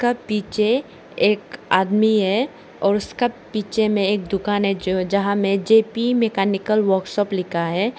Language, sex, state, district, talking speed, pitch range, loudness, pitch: Hindi, female, Arunachal Pradesh, Lower Dibang Valley, 150 wpm, 195-220 Hz, -20 LUFS, 205 Hz